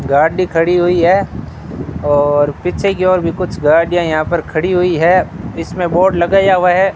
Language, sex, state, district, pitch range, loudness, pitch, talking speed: Hindi, male, Rajasthan, Bikaner, 165-185 Hz, -13 LUFS, 175 Hz, 180 wpm